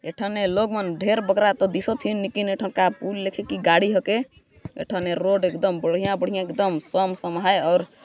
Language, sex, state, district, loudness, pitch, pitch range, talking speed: Sadri, female, Chhattisgarh, Jashpur, -22 LUFS, 195 Hz, 180-200 Hz, 195 wpm